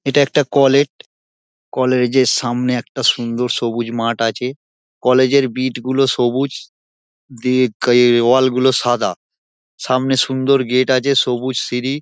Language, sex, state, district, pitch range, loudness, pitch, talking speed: Bengali, male, West Bengal, Dakshin Dinajpur, 120-130 Hz, -16 LUFS, 125 Hz, 140 wpm